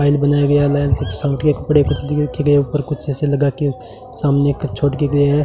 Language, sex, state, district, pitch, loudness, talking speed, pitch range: Hindi, male, Rajasthan, Bikaner, 145 Hz, -17 LUFS, 255 wpm, 140-145 Hz